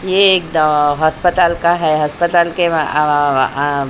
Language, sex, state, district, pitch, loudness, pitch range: Hindi, female, Maharashtra, Mumbai Suburban, 160 Hz, -14 LUFS, 150-175 Hz